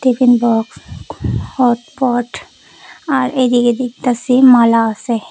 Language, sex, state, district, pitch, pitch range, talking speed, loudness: Bengali, female, Tripura, West Tripura, 245 Hz, 235-255 Hz, 90 wpm, -14 LUFS